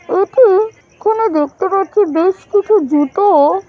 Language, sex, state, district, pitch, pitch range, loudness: Bengali, female, West Bengal, Jhargram, 390 Hz, 335-420 Hz, -13 LUFS